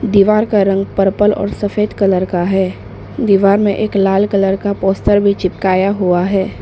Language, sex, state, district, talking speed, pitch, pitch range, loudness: Hindi, female, Arunachal Pradesh, Papum Pare, 180 wpm, 195 Hz, 190-205 Hz, -14 LUFS